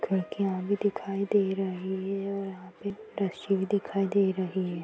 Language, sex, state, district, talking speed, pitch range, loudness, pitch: Hindi, female, Uttar Pradesh, Ghazipur, 175 wpm, 190-200 Hz, -30 LUFS, 195 Hz